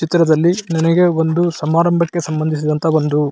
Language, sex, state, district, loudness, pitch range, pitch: Kannada, male, Karnataka, Raichur, -15 LUFS, 155-170 Hz, 165 Hz